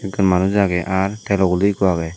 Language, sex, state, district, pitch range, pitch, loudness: Chakma, male, Tripura, Dhalai, 90-100 Hz, 95 Hz, -18 LUFS